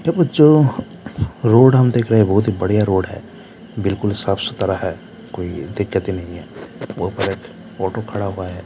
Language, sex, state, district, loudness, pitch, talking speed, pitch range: Hindi, male, Jharkhand, Jamtara, -17 LUFS, 105 Hz, 185 wpm, 95-115 Hz